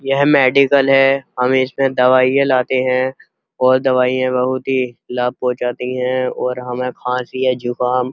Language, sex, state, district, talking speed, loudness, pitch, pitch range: Hindi, male, Uttar Pradesh, Muzaffarnagar, 155 wpm, -16 LUFS, 130 Hz, 125-130 Hz